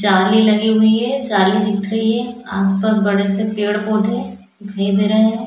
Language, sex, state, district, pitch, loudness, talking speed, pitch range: Hindi, female, Goa, North and South Goa, 210 Hz, -16 LUFS, 200 wpm, 200-220 Hz